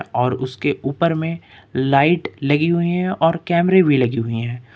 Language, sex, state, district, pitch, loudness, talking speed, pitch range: Hindi, male, Uttar Pradesh, Lucknow, 150 Hz, -18 LUFS, 175 wpm, 130-170 Hz